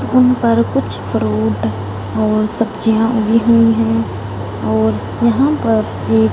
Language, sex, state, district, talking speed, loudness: Hindi, female, Punjab, Fazilka, 125 wpm, -15 LUFS